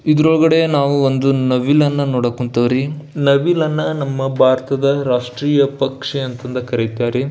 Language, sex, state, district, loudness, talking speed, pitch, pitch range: Kannada, male, Karnataka, Belgaum, -16 LUFS, 125 wpm, 135 Hz, 125-145 Hz